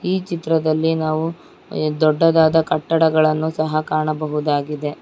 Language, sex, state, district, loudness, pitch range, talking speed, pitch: Kannada, female, Karnataka, Bangalore, -18 LUFS, 155-160 Hz, 85 wpm, 155 Hz